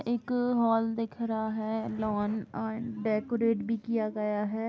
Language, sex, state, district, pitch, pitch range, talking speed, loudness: Hindi, female, Uttar Pradesh, Jalaun, 225 Hz, 215-230 Hz, 155 wpm, -31 LUFS